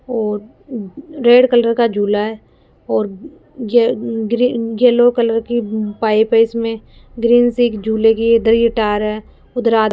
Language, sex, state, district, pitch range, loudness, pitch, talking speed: Hindi, female, Rajasthan, Jaipur, 220-240 Hz, -15 LUFS, 230 Hz, 175 wpm